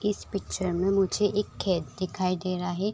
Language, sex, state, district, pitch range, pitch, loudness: Hindi, female, Chhattisgarh, Raigarh, 180-200 Hz, 190 Hz, -28 LUFS